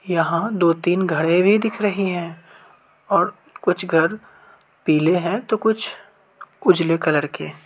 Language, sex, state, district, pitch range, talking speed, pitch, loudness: Hindi, male, Uttar Pradesh, Varanasi, 165-205 Hz, 140 wpm, 175 Hz, -20 LUFS